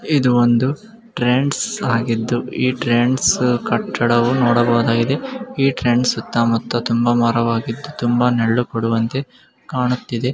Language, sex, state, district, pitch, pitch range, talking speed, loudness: Kannada, male, Karnataka, Mysore, 120 Hz, 115-130 Hz, 100 wpm, -18 LUFS